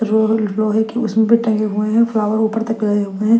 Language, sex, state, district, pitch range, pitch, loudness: Hindi, female, Maharashtra, Mumbai Suburban, 215-225 Hz, 220 Hz, -17 LUFS